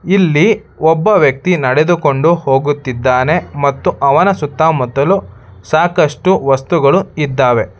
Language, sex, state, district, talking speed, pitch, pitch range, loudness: Kannada, male, Karnataka, Bangalore, 90 wpm, 150 Hz, 135-175 Hz, -12 LUFS